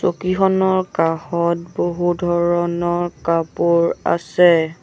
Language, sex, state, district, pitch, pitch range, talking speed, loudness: Assamese, male, Assam, Sonitpur, 175 Hz, 170-175 Hz, 75 wpm, -18 LUFS